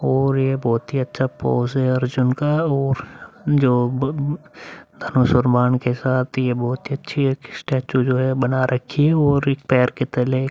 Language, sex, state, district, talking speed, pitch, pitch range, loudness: Hindi, male, Uttar Pradesh, Muzaffarnagar, 190 wpm, 130 Hz, 125-140 Hz, -20 LUFS